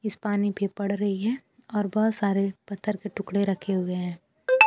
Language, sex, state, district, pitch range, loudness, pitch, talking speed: Hindi, female, Bihar, Kaimur, 195-215 Hz, -28 LUFS, 205 Hz, 195 wpm